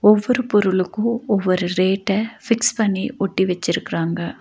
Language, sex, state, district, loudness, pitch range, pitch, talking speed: Tamil, female, Tamil Nadu, Nilgiris, -20 LUFS, 185-225 Hz, 200 Hz, 110 wpm